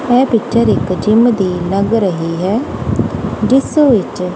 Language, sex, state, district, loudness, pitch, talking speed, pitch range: Punjabi, female, Punjab, Kapurthala, -14 LUFS, 215 Hz, 135 wpm, 185-240 Hz